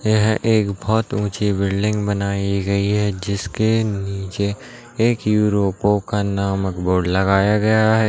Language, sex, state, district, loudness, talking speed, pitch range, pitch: Hindi, male, Bihar, Darbhanga, -19 LUFS, 135 wpm, 100-110 Hz, 105 Hz